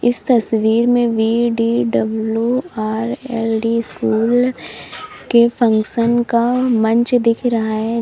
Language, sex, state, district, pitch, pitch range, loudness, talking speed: Hindi, female, Uttar Pradesh, Lalitpur, 230 Hz, 220-240 Hz, -16 LUFS, 80 wpm